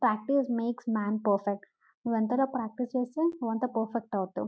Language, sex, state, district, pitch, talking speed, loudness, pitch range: Telugu, female, Telangana, Karimnagar, 235 Hz, 160 wpm, -30 LUFS, 215-250 Hz